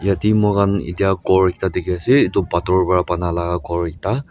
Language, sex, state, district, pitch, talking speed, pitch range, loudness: Nagamese, male, Nagaland, Dimapur, 95 Hz, 180 wpm, 90-100 Hz, -18 LUFS